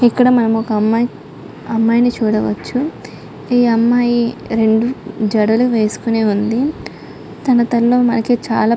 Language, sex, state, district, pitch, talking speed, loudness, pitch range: Telugu, female, Andhra Pradesh, Chittoor, 230 Hz, 110 wpm, -15 LUFS, 220-245 Hz